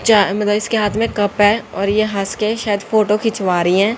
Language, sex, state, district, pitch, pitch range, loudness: Hindi, female, Haryana, Jhajjar, 210 Hz, 200-215 Hz, -16 LUFS